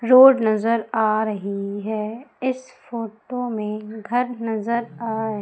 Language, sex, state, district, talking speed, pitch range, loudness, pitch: Hindi, female, Madhya Pradesh, Umaria, 120 wpm, 215-245 Hz, -22 LUFS, 225 Hz